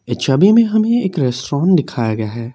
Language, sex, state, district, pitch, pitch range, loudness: Hindi, male, Assam, Kamrup Metropolitan, 140 Hz, 120-195 Hz, -15 LUFS